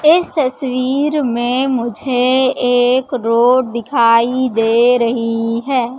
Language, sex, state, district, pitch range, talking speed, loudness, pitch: Hindi, female, Madhya Pradesh, Katni, 235-260 Hz, 100 wpm, -14 LUFS, 250 Hz